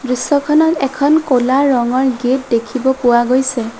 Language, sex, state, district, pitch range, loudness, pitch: Assamese, female, Assam, Sonitpur, 245-280 Hz, -14 LUFS, 260 Hz